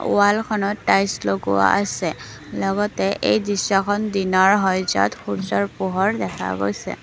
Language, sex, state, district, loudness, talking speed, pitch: Assamese, female, Assam, Kamrup Metropolitan, -20 LUFS, 120 wpm, 185 Hz